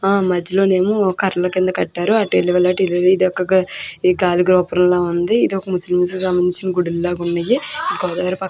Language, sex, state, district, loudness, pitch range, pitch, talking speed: Telugu, female, Andhra Pradesh, Krishna, -16 LUFS, 180-190 Hz, 180 Hz, 90 wpm